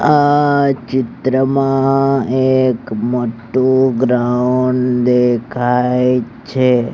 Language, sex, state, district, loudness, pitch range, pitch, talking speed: Gujarati, male, Gujarat, Gandhinagar, -14 LUFS, 125-130 Hz, 125 Hz, 70 wpm